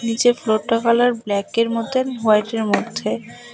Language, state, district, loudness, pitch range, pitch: Bengali, West Bengal, Alipurduar, -19 LUFS, 220-240 Hz, 230 Hz